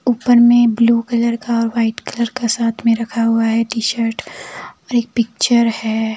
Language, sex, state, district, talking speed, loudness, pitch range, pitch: Hindi, female, Bihar, Katihar, 185 wpm, -16 LUFS, 230-235 Hz, 230 Hz